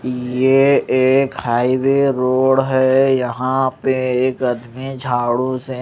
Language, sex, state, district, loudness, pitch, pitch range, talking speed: Hindi, male, Odisha, Malkangiri, -16 LUFS, 130 Hz, 125-135 Hz, 115 wpm